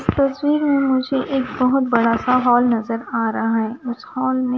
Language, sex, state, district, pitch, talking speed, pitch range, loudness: Hindi, female, Punjab, Kapurthala, 255 Hz, 195 wpm, 235-270 Hz, -19 LUFS